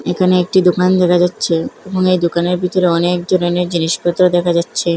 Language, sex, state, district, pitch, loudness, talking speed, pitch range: Bengali, female, Assam, Hailakandi, 180 Hz, -14 LUFS, 170 wpm, 175-185 Hz